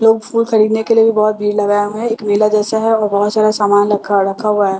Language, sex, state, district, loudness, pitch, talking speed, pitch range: Hindi, female, Bihar, Katihar, -14 LUFS, 215 Hz, 285 wpm, 205-220 Hz